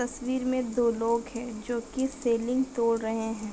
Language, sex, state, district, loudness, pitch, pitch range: Hindi, female, Bihar, Kishanganj, -29 LUFS, 235 Hz, 230-255 Hz